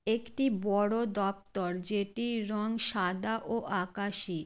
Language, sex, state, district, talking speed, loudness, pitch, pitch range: Bengali, female, West Bengal, Jalpaiguri, 105 wpm, -32 LUFS, 205 Hz, 195-225 Hz